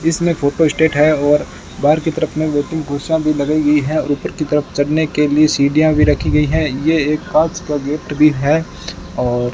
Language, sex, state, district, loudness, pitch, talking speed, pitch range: Hindi, male, Rajasthan, Bikaner, -15 LUFS, 150 Hz, 225 wpm, 145-160 Hz